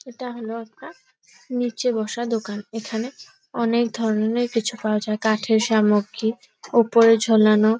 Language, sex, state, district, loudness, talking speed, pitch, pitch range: Bengali, female, West Bengal, Purulia, -21 LUFS, 125 wpm, 230 Hz, 220-240 Hz